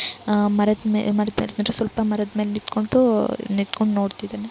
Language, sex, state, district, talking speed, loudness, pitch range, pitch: Kannada, female, Karnataka, Raichur, 65 wpm, -22 LUFS, 210-220 Hz, 215 Hz